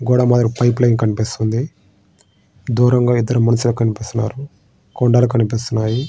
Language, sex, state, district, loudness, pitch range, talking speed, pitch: Telugu, male, Andhra Pradesh, Srikakulam, -16 LUFS, 115-125 Hz, 110 wpm, 120 Hz